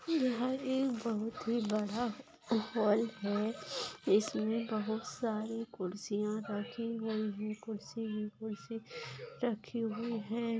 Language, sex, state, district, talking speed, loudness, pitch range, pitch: Hindi, female, Maharashtra, Dhule, 115 wpm, -36 LUFS, 215-235 Hz, 225 Hz